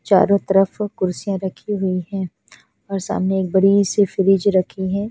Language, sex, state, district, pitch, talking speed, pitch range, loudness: Hindi, female, Punjab, Fazilka, 195 Hz, 175 wpm, 190-200 Hz, -19 LUFS